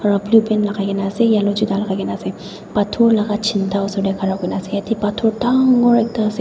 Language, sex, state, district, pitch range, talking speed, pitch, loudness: Nagamese, female, Nagaland, Dimapur, 200-225 Hz, 225 wpm, 210 Hz, -17 LUFS